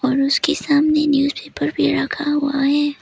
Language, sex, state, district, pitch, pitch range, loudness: Hindi, female, Arunachal Pradesh, Papum Pare, 280 Hz, 265-295 Hz, -18 LUFS